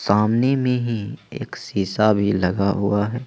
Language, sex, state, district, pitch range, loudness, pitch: Hindi, male, Jharkhand, Ranchi, 100-120 Hz, -20 LUFS, 105 Hz